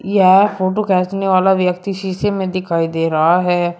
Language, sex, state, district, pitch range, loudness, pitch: Hindi, male, Uttar Pradesh, Shamli, 175-195 Hz, -15 LUFS, 185 Hz